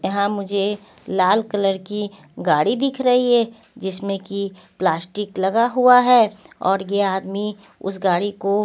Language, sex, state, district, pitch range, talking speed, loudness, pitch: Hindi, female, Punjab, Pathankot, 195-215 Hz, 145 wpm, -20 LUFS, 200 Hz